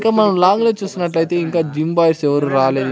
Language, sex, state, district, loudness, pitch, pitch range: Telugu, male, Andhra Pradesh, Sri Satya Sai, -16 LUFS, 170 Hz, 150-195 Hz